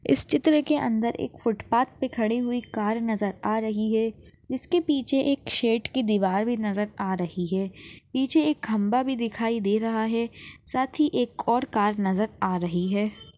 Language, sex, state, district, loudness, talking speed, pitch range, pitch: Hindi, female, Maharashtra, Chandrapur, -26 LUFS, 190 wpm, 210-260 Hz, 225 Hz